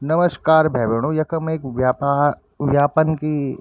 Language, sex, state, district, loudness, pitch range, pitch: Garhwali, male, Uttarakhand, Tehri Garhwal, -19 LUFS, 140-155 Hz, 145 Hz